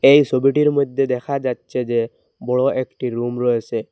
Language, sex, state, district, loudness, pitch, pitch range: Bengali, male, Assam, Hailakandi, -19 LUFS, 130 Hz, 120-135 Hz